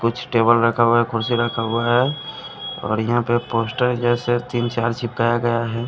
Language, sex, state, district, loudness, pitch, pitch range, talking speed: Hindi, male, Punjab, Kapurthala, -20 LUFS, 120 Hz, 115-120 Hz, 195 wpm